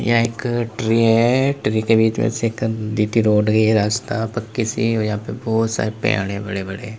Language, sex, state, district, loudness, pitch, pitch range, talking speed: Hindi, male, Uttar Pradesh, Lalitpur, -19 LUFS, 110 Hz, 110-115 Hz, 205 wpm